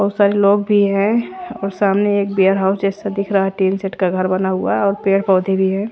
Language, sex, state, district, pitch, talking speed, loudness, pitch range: Hindi, female, Haryana, Rohtak, 195 Hz, 245 wpm, -16 LUFS, 190-200 Hz